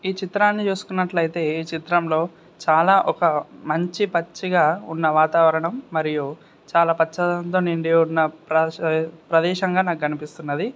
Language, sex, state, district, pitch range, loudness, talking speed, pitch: Telugu, male, Karnataka, Dharwad, 160-180 Hz, -21 LUFS, 110 wpm, 165 Hz